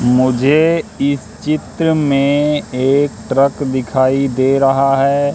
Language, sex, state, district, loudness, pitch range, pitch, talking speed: Hindi, male, Madhya Pradesh, Katni, -14 LUFS, 130-145 Hz, 140 Hz, 110 wpm